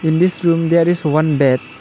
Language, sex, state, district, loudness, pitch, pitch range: English, male, Arunachal Pradesh, Lower Dibang Valley, -15 LUFS, 165 Hz, 155-170 Hz